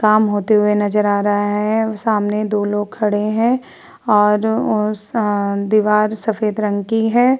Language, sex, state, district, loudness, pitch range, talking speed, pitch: Hindi, female, Uttar Pradesh, Varanasi, -17 LUFS, 205-220 Hz, 160 wpm, 210 Hz